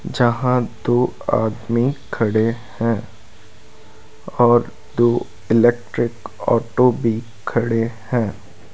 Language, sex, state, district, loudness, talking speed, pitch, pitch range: Hindi, male, Rajasthan, Bikaner, -19 LUFS, 80 wpm, 115 Hz, 110-120 Hz